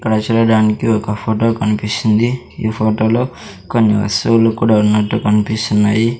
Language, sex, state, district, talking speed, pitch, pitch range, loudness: Telugu, male, Andhra Pradesh, Sri Satya Sai, 125 wpm, 110 Hz, 105-115 Hz, -15 LUFS